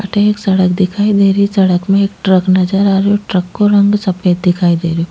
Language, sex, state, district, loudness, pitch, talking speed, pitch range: Rajasthani, female, Rajasthan, Nagaur, -12 LUFS, 195 Hz, 235 wpm, 185-200 Hz